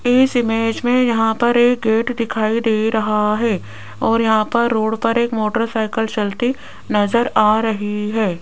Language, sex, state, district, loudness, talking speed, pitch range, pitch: Hindi, female, Rajasthan, Jaipur, -17 LUFS, 165 wpm, 215-235 Hz, 225 Hz